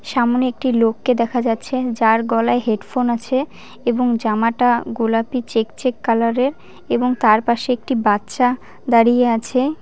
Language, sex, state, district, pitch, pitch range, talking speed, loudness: Bengali, female, West Bengal, Cooch Behar, 240 Hz, 230-250 Hz, 135 wpm, -18 LUFS